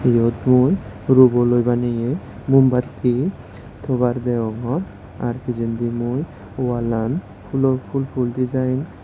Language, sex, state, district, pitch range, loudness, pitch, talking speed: Chakma, male, Tripura, West Tripura, 115-130 Hz, -20 LUFS, 120 Hz, 100 wpm